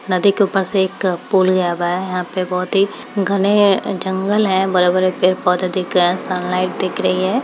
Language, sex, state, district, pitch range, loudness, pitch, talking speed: Hindi, female, Uttar Pradesh, Etah, 180-195 Hz, -17 LUFS, 185 Hz, 200 wpm